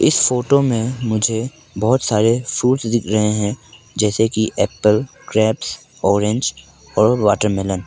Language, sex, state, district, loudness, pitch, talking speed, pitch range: Hindi, male, Arunachal Pradesh, Papum Pare, -17 LUFS, 110 Hz, 130 wpm, 105-125 Hz